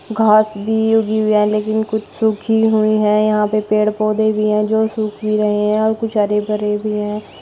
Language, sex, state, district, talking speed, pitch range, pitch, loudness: Hindi, female, Uttar Pradesh, Shamli, 220 wpm, 210-220 Hz, 215 Hz, -16 LUFS